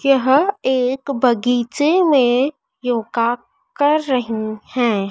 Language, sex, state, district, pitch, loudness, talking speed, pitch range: Hindi, female, Madhya Pradesh, Dhar, 255 Hz, -18 LUFS, 95 wpm, 240-285 Hz